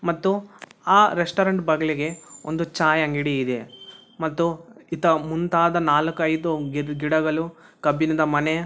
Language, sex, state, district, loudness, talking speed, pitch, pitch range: Kannada, male, Karnataka, Bellary, -22 LUFS, 110 wpm, 160 Hz, 155-170 Hz